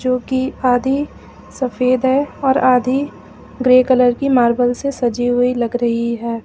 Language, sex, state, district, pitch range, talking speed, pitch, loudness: Hindi, female, Jharkhand, Ranchi, 245-260 Hz, 150 wpm, 255 Hz, -16 LUFS